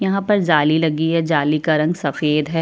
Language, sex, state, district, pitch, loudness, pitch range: Hindi, female, Chhattisgarh, Kabirdham, 160 Hz, -17 LUFS, 150-165 Hz